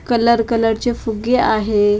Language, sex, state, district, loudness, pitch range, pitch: Marathi, female, Maharashtra, Mumbai Suburban, -16 LUFS, 220-235 Hz, 230 Hz